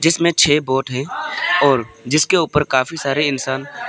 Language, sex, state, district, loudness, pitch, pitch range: Hindi, male, Arunachal Pradesh, Papum Pare, -17 LUFS, 145 Hz, 135-165 Hz